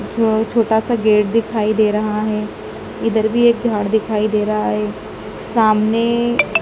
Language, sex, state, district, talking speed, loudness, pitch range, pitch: Hindi, male, Madhya Pradesh, Dhar, 145 wpm, -17 LUFS, 210-225 Hz, 215 Hz